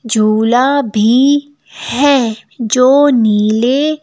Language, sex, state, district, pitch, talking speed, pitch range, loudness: Hindi, female, Madhya Pradesh, Bhopal, 250 Hz, 90 wpm, 220-285 Hz, -12 LUFS